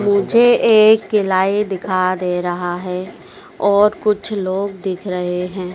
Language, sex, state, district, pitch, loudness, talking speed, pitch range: Hindi, female, Madhya Pradesh, Dhar, 190 Hz, -16 LUFS, 135 wpm, 180-210 Hz